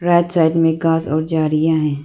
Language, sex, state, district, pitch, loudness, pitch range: Hindi, female, Arunachal Pradesh, Lower Dibang Valley, 160 Hz, -16 LUFS, 155-165 Hz